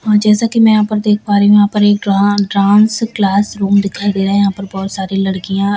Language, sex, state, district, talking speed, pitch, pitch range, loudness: Hindi, female, Bihar, Patna, 250 wpm, 205 Hz, 195-210 Hz, -12 LUFS